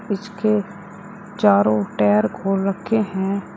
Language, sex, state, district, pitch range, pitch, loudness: Hindi, female, Uttar Pradesh, Shamli, 190-205 Hz, 200 Hz, -20 LUFS